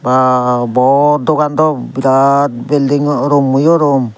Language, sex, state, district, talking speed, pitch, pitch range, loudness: Chakma, male, Tripura, Dhalai, 115 wpm, 140 Hz, 130-145 Hz, -12 LUFS